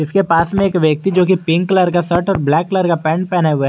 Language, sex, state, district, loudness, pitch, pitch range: Hindi, male, Jharkhand, Garhwa, -15 LUFS, 175 Hz, 160-185 Hz